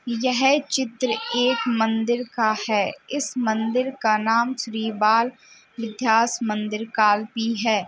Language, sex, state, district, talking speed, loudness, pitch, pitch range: Hindi, female, Uttar Pradesh, Jalaun, 120 wpm, -22 LUFS, 230 Hz, 220-250 Hz